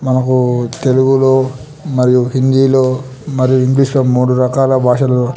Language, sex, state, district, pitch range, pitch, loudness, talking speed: Telugu, male, Telangana, Nalgonda, 125-135 Hz, 130 Hz, -12 LUFS, 100 wpm